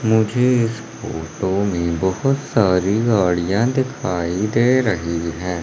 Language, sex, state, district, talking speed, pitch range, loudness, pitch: Hindi, male, Madhya Pradesh, Umaria, 115 wpm, 90-115 Hz, -19 LUFS, 100 Hz